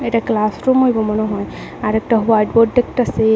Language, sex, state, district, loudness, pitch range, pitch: Bengali, female, Tripura, West Tripura, -16 LUFS, 215-240 Hz, 225 Hz